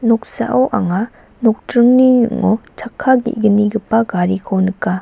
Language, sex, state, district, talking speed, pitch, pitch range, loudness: Garo, female, Meghalaya, West Garo Hills, 95 wpm, 225 Hz, 205-240 Hz, -15 LUFS